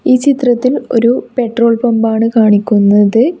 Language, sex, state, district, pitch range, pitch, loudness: Malayalam, female, Kerala, Kasaragod, 225-255 Hz, 235 Hz, -11 LUFS